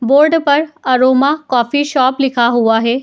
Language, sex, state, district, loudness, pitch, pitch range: Hindi, female, Uttar Pradesh, Muzaffarnagar, -13 LUFS, 265 Hz, 245-290 Hz